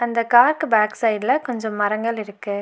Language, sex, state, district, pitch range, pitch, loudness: Tamil, female, Tamil Nadu, Nilgiris, 210-240 Hz, 225 Hz, -19 LUFS